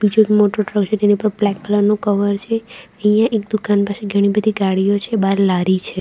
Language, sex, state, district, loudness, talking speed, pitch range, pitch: Gujarati, female, Gujarat, Valsad, -17 LUFS, 220 wpm, 200-215 Hz, 205 Hz